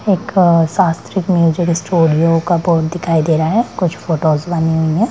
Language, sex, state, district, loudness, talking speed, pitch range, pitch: Hindi, female, Bihar, Darbhanga, -14 LUFS, 175 wpm, 160-180 Hz, 170 Hz